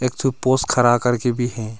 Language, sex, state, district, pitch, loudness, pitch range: Hindi, male, Arunachal Pradesh, Longding, 120 Hz, -19 LUFS, 120-125 Hz